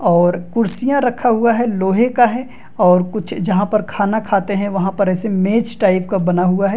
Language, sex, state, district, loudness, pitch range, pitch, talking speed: Hindi, male, Bihar, Madhepura, -16 LUFS, 190-230 Hz, 200 Hz, 215 wpm